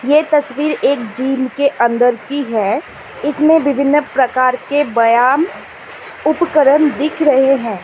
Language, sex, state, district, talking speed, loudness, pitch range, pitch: Hindi, female, Assam, Kamrup Metropolitan, 130 wpm, -14 LUFS, 255-295 Hz, 280 Hz